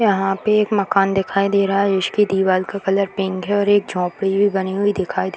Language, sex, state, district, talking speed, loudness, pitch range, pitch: Hindi, female, Bihar, Jamui, 255 wpm, -18 LUFS, 190-200 Hz, 195 Hz